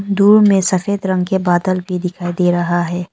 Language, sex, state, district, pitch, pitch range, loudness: Hindi, female, Arunachal Pradesh, Longding, 185 Hz, 175-195 Hz, -15 LUFS